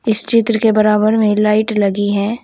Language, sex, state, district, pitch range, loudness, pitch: Hindi, female, Uttar Pradesh, Saharanpur, 210-220 Hz, -13 LUFS, 215 Hz